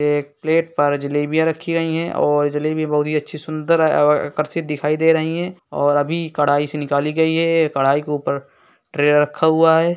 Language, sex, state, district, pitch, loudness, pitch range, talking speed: Hindi, male, Uttar Pradesh, Hamirpur, 150 Hz, -18 LUFS, 145-160 Hz, 205 wpm